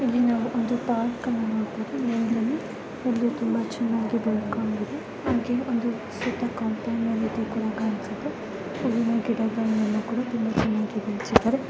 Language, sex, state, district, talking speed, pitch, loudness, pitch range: Kannada, female, Karnataka, Mysore, 125 wpm, 230 Hz, -26 LUFS, 220-240 Hz